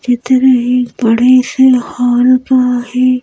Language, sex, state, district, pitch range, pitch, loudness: Hindi, female, Madhya Pradesh, Bhopal, 245-255 Hz, 250 Hz, -11 LUFS